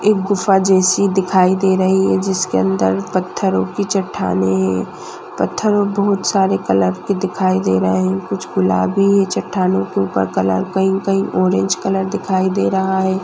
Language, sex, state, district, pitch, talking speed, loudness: Hindi, female, Maharashtra, Nagpur, 190 Hz, 160 wpm, -16 LUFS